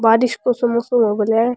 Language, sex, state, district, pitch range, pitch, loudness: Rajasthani, female, Rajasthan, Churu, 225-245 Hz, 235 Hz, -17 LUFS